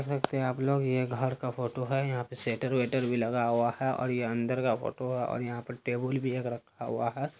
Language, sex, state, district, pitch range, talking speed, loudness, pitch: Hindi, male, Bihar, Araria, 120-130 Hz, 260 wpm, -31 LUFS, 125 Hz